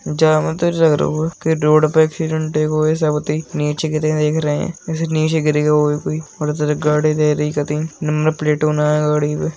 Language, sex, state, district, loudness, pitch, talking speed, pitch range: Bundeli, male, Uttar Pradesh, Budaun, -17 LUFS, 155 Hz, 165 wpm, 150-155 Hz